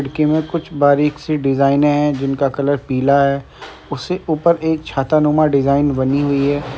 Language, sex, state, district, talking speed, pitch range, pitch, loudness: Hindi, male, Uttar Pradesh, Etah, 170 wpm, 140-155 Hz, 145 Hz, -16 LUFS